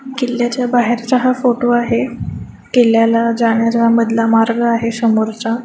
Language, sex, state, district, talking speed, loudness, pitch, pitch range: Marathi, female, Maharashtra, Chandrapur, 125 wpm, -14 LUFS, 235 Hz, 230-245 Hz